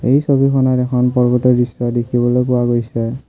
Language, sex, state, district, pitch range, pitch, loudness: Assamese, male, Assam, Kamrup Metropolitan, 120-130 Hz, 125 Hz, -15 LUFS